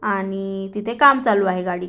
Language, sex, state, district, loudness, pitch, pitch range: Marathi, female, Maharashtra, Aurangabad, -19 LUFS, 195 Hz, 195-215 Hz